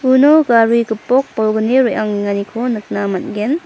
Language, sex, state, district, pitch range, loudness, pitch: Garo, female, Meghalaya, West Garo Hills, 210-260 Hz, -15 LUFS, 230 Hz